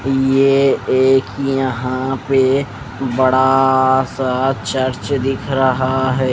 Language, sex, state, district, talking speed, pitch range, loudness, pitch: Hindi, male, Punjab, Pathankot, 95 wpm, 130-135 Hz, -16 LUFS, 130 Hz